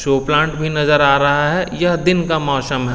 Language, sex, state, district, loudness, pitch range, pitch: Hindi, male, Delhi, New Delhi, -15 LUFS, 140-160 Hz, 150 Hz